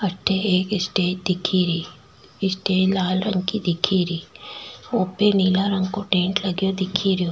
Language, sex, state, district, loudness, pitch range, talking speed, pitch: Rajasthani, female, Rajasthan, Nagaur, -22 LUFS, 185-195 Hz, 155 wpm, 190 Hz